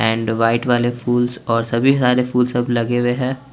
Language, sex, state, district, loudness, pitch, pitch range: Hindi, male, Chandigarh, Chandigarh, -18 LUFS, 120 Hz, 115-125 Hz